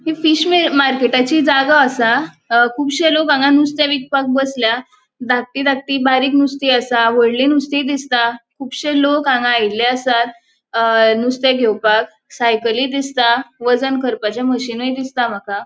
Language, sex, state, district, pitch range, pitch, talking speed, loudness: Konkani, female, Goa, North and South Goa, 235-280 Hz, 255 Hz, 140 wpm, -15 LUFS